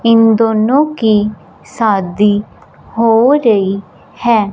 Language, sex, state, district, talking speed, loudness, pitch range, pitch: Hindi, male, Punjab, Fazilka, 95 wpm, -12 LUFS, 205-230 Hz, 220 Hz